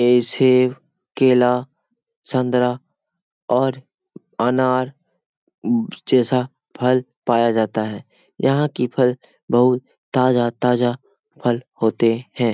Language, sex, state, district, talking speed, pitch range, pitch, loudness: Hindi, male, Bihar, Jamui, 90 wpm, 120-130 Hz, 125 Hz, -19 LUFS